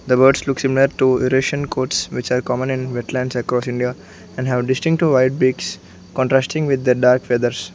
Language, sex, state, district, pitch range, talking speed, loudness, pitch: English, male, Arunachal Pradesh, Lower Dibang Valley, 125-135 Hz, 185 wpm, -18 LUFS, 130 Hz